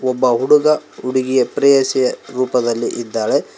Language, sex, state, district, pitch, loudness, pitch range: Kannada, male, Karnataka, Koppal, 130 Hz, -16 LUFS, 125-135 Hz